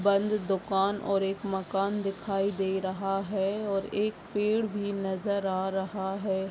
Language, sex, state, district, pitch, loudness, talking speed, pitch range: Hindi, female, Bihar, Bhagalpur, 195 Hz, -30 LUFS, 155 wpm, 195-205 Hz